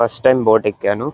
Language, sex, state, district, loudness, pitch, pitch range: Telugu, male, Andhra Pradesh, Anantapur, -15 LUFS, 115 Hz, 105-125 Hz